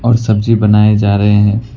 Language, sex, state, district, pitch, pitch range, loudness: Hindi, male, West Bengal, Alipurduar, 105 Hz, 105-115 Hz, -11 LUFS